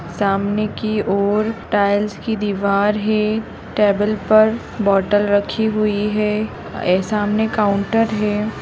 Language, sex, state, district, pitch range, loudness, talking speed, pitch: Hindi, female, Bihar, Madhepura, 200-215 Hz, -18 LUFS, 120 wpm, 210 Hz